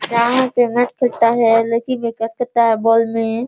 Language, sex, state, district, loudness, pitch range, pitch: Hindi, female, Bihar, Sitamarhi, -16 LUFS, 230-245 Hz, 235 Hz